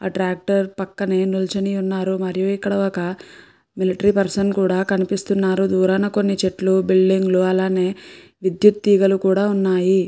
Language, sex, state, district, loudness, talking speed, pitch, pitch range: Telugu, female, Andhra Pradesh, Guntur, -19 LUFS, 130 wpm, 190 Hz, 185-195 Hz